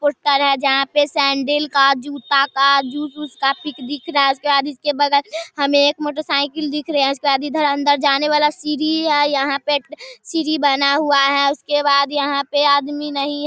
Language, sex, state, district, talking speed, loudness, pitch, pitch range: Hindi, female, Bihar, Darbhanga, 210 wpm, -17 LUFS, 285 Hz, 280-295 Hz